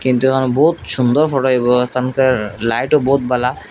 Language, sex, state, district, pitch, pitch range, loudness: Bengali, male, Assam, Hailakandi, 130 Hz, 125-135 Hz, -15 LUFS